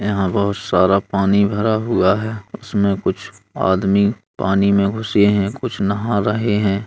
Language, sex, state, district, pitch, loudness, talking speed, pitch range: Hindi, male, Uttar Pradesh, Gorakhpur, 100 Hz, -18 LUFS, 155 wpm, 100-105 Hz